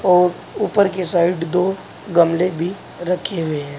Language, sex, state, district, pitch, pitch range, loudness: Hindi, male, Uttar Pradesh, Saharanpur, 180 Hz, 170-185 Hz, -18 LUFS